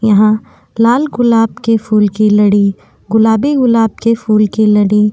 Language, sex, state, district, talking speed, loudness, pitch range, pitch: Hindi, female, Uttar Pradesh, Jyotiba Phule Nagar, 165 wpm, -11 LUFS, 210-230 Hz, 220 Hz